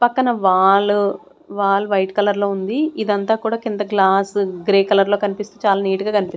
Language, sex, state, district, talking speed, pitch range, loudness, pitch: Telugu, female, Andhra Pradesh, Sri Satya Sai, 190 wpm, 195-210 Hz, -18 LUFS, 205 Hz